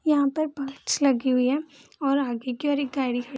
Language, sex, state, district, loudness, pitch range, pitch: Hindi, female, Bihar, Purnia, -25 LUFS, 260-285 Hz, 275 Hz